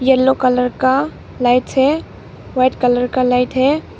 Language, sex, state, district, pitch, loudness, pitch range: Hindi, female, Arunachal Pradesh, Papum Pare, 255 Hz, -16 LUFS, 250-265 Hz